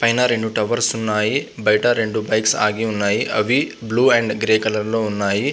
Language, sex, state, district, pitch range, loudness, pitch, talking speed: Telugu, male, Andhra Pradesh, Visakhapatnam, 105-115 Hz, -18 LUFS, 110 Hz, 175 wpm